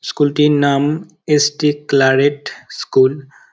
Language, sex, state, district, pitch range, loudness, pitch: Bengali, male, West Bengal, Dakshin Dinajpur, 140-150 Hz, -15 LUFS, 145 Hz